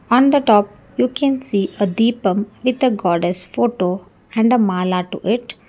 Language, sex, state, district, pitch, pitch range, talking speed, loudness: English, female, Karnataka, Bangalore, 210 Hz, 185-245 Hz, 180 wpm, -17 LUFS